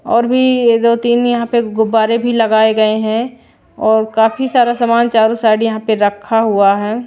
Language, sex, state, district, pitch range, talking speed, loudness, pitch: Hindi, female, Bihar, Patna, 220-240 Hz, 195 wpm, -13 LUFS, 225 Hz